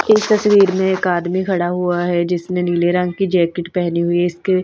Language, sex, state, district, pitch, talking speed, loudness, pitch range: Hindi, female, Bihar, Patna, 180 Hz, 220 wpm, -17 LUFS, 175-190 Hz